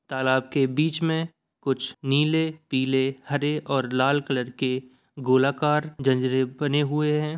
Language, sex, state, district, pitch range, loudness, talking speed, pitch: Hindi, male, Bihar, Samastipur, 130-150 Hz, -24 LUFS, 130 wpm, 140 Hz